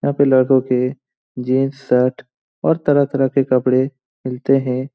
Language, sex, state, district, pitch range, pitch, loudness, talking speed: Hindi, male, Bihar, Lakhisarai, 125-135 Hz, 130 Hz, -17 LUFS, 145 wpm